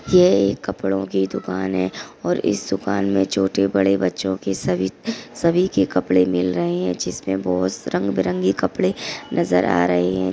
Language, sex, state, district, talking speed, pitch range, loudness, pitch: Hindi, female, Maharashtra, Aurangabad, 160 wpm, 90-100 Hz, -20 LUFS, 95 Hz